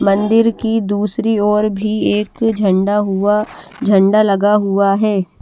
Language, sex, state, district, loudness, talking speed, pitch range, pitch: Hindi, female, Haryana, Charkhi Dadri, -15 LUFS, 135 wpm, 200-215 Hz, 210 Hz